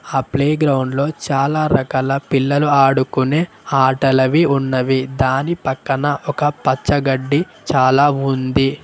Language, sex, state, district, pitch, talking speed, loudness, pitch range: Telugu, male, Telangana, Mahabubabad, 135 Hz, 110 wpm, -16 LUFS, 130-145 Hz